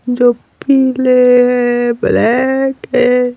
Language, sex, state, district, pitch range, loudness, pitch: Hindi, male, Bihar, Patna, 245-260 Hz, -12 LUFS, 250 Hz